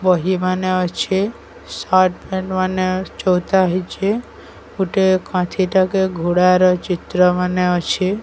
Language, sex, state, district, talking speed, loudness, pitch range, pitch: Odia, female, Odisha, Sambalpur, 115 wpm, -17 LUFS, 180-190 Hz, 185 Hz